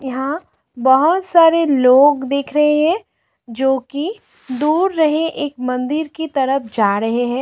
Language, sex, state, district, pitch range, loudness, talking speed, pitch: Hindi, female, Delhi, New Delhi, 260-315 Hz, -16 LUFS, 145 wpm, 280 Hz